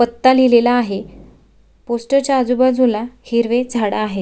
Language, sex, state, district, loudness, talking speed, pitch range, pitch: Marathi, female, Maharashtra, Sindhudurg, -16 LUFS, 130 wpm, 235-255 Hz, 245 Hz